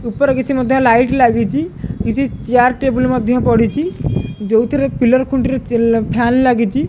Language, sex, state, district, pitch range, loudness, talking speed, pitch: Odia, male, Odisha, Khordha, 230-265 Hz, -15 LUFS, 150 wpm, 250 Hz